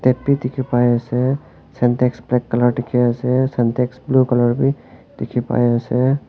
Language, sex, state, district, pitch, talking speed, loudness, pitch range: Nagamese, male, Nagaland, Kohima, 125 Hz, 145 wpm, -18 LUFS, 120-130 Hz